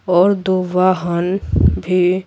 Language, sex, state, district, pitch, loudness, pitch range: Hindi, female, Bihar, Patna, 185 Hz, -16 LUFS, 180-185 Hz